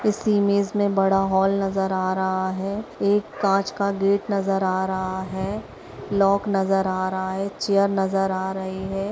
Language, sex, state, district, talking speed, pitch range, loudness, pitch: Hindi, female, Chhattisgarh, Raigarh, 175 wpm, 190-200 Hz, -23 LUFS, 195 Hz